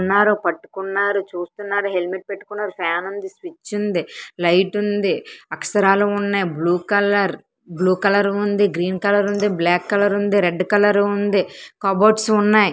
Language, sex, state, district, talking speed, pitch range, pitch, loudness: Telugu, male, Andhra Pradesh, Srikakulam, 135 wpm, 185-205 Hz, 200 Hz, -19 LUFS